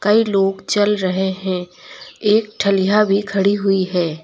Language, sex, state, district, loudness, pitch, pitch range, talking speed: Hindi, female, Uttar Pradesh, Lucknow, -17 LUFS, 195 Hz, 190-205 Hz, 155 wpm